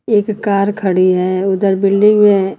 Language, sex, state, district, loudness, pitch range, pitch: Hindi, female, Uttar Pradesh, Lucknow, -13 LUFS, 190-210 Hz, 195 Hz